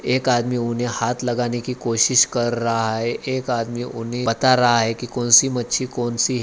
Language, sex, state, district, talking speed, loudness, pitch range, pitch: Hindi, male, Maharashtra, Aurangabad, 195 wpm, -20 LUFS, 115-125 Hz, 120 Hz